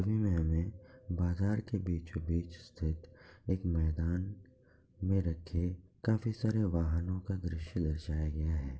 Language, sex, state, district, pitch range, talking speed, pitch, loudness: Hindi, male, Bihar, Kishanganj, 85-100 Hz, 110 wpm, 90 Hz, -35 LUFS